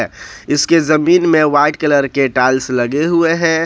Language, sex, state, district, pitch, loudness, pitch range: Hindi, male, Jharkhand, Ranchi, 150 Hz, -13 LUFS, 140-165 Hz